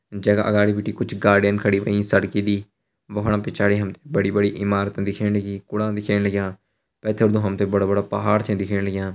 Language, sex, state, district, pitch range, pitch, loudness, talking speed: Garhwali, male, Uttarakhand, Uttarkashi, 100-105 Hz, 100 Hz, -21 LUFS, 170 wpm